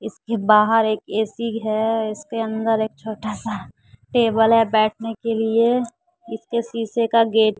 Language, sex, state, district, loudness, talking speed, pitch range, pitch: Hindi, female, Bihar, West Champaran, -20 LUFS, 160 wpm, 215-230 Hz, 225 Hz